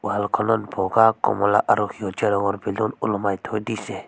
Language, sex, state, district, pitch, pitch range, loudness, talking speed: Assamese, female, Assam, Sonitpur, 105 Hz, 95-110 Hz, -22 LUFS, 160 wpm